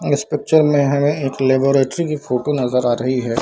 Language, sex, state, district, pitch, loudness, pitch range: Hindi, male, Bihar, Samastipur, 135 Hz, -17 LUFS, 130-145 Hz